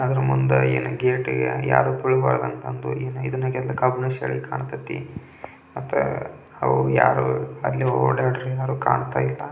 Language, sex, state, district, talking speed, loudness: Kannada, male, Karnataka, Belgaum, 65 wpm, -23 LUFS